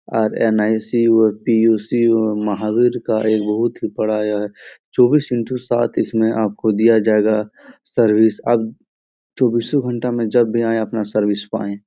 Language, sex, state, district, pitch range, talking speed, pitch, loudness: Hindi, male, Bihar, Jahanabad, 110-120 Hz, 140 wpm, 110 Hz, -17 LUFS